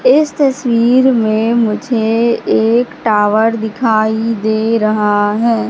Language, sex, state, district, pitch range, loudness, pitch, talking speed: Hindi, female, Madhya Pradesh, Katni, 220-235 Hz, -13 LUFS, 225 Hz, 105 wpm